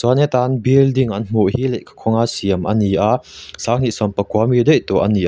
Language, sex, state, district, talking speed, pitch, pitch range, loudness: Mizo, male, Mizoram, Aizawl, 250 wpm, 115 Hz, 105-125 Hz, -17 LUFS